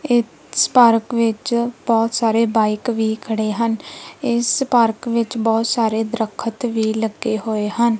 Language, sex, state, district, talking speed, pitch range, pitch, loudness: Punjabi, female, Punjab, Kapurthala, 140 wpm, 220-235 Hz, 230 Hz, -18 LUFS